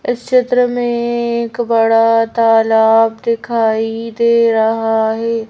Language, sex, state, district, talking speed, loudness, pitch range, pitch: Hindi, female, Madhya Pradesh, Bhopal, 110 wpm, -14 LUFS, 225-235 Hz, 230 Hz